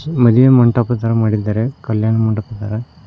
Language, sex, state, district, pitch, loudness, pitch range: Kannada, male, Karnataka, Koppal, 115 Hz, -15 LUFS, 110-120 Hz